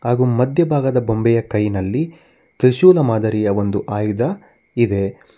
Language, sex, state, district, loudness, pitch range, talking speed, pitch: Kannada, male, Karnataka, Bangalore, -17 LUFS, 105-135 Hz, 100 wpm, 120 Hz